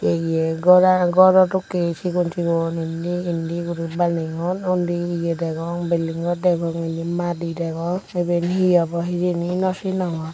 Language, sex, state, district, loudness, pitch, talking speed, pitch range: Chakma, female, Tripura, Unakoti, -21 LUFS, 175 Hz, 135 wpm, 165-180 Hz